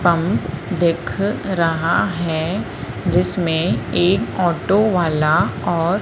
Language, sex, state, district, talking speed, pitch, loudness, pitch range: Hindi, female, Madhya Pradesh, Umaria, 90 wpm, 175 Hz, -19 LUFS, 165-190 Hz